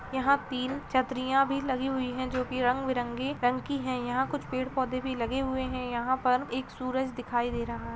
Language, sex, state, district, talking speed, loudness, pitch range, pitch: Hindi, female, Bihar, Purnia, 220 wpm, -30 LUFS, 250-265 Hz, 255 Hz